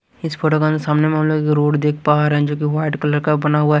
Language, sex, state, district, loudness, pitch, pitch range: Hindi, male, Haryana, Rohtak, -17 LUFS, 150 Hz, 150-155 Hz